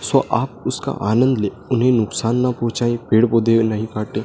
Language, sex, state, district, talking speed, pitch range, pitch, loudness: Hindi, male, Madhya Pradesh, Dhar, 185 wpm, 110-120 Hz, 115 Hz, -18 LUFS